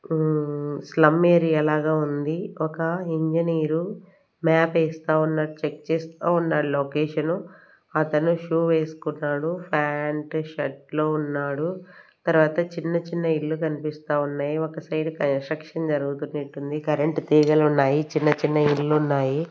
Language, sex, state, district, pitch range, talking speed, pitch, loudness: Telugu, female, Andhra Pradesh, Sri Satya Sai, 150-165 Hz, 115 wpm, 155 Hz, -24 LUFS